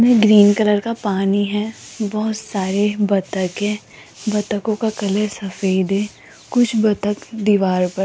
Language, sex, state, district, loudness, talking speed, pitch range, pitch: Hindi, female, Rajasthan, Jaipur, -18 LUFS, 150 wpm, 200-215 Hz, 210 Hz